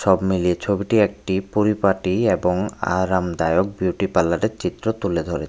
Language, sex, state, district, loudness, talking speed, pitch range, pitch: Bengali, male, Tripura, West Tripura, -21 LUFS, 120 wpm, 90-100 Hz, 95 Hz